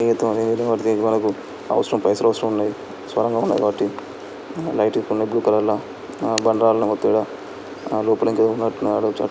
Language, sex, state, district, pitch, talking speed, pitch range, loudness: Telugu, male, Andhra Pradesh, Srikakulam, 110 Hz, 115 wpm, 110-115 Hz, -20 LUFS